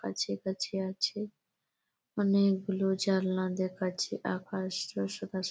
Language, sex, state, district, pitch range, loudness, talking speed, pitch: Bengali, female, West Bengal, Malda, 185-195 Hz, -32 LUFS, 85 wpm, 190 Hz